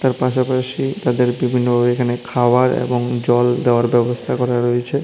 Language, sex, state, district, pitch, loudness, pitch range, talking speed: Bengali, male, Tripura, West Tripura, 125 Hz, -17 LUFS, 120-125 Hz, 145 wpm